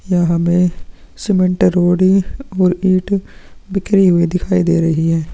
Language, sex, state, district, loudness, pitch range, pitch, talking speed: Hindi, male, Chhattisgarh, Korba, -15 LUFS, 170-190 Hz, 180 Hz, 135 wpm